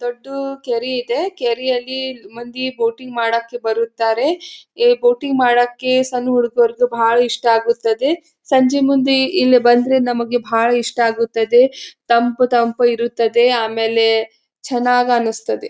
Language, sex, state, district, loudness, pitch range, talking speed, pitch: Kannada, female, Karnataka, Belgaum, -16 LUFS, 235-260 Hz, 110 wpm, 245 Hz